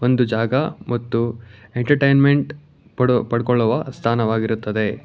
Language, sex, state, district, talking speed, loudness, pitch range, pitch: Kannada, male, Karnataka, Bangalore, 85 wpm, -19 LUFS, 115-140 Hz, 120 Hz